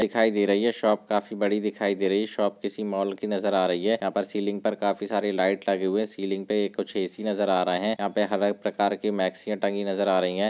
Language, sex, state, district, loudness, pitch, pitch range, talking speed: Hindi, male, Rajasthan, Churu, -26 LUFS, 100 Hz, 95-105 Hz, 280 wpm